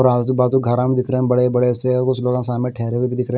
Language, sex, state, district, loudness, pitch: Hindi, male, Bihar, West Champaran, -18 LUFS, 125 Hz